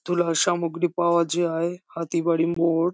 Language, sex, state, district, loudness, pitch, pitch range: Bengali, female, West Bengal, Jhargram, -23 LUFS, 170 Hz, 170-175 Hz